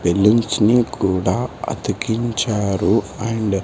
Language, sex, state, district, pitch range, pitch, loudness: Telugu, male, Andhra Pradesh, Sri Satya Sai, 100-115 Hz, 110 Hz, -19 LUFS